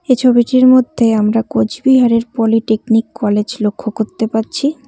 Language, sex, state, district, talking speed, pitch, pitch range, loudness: Bengali, female, West Bengal, Cooch Behar, 125 wpm, 225 Hz, 220-255 Hz, -13 LUFS